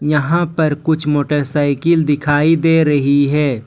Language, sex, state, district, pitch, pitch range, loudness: Hindi, male, Jharkhand, Ranchi, 150 Hz, 145-160 Hz, -15 LUFS